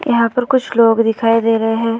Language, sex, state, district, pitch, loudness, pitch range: Hindi, female, Uttar Pradesh, Hamirpur, 230 Hz, -14 LUFS, 225-235 Hz